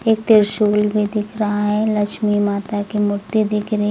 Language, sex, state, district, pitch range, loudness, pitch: Hindi, female, Uttar Pradesh, Lucknow, 205-215 Hz, -18 LUFS, 210 Hz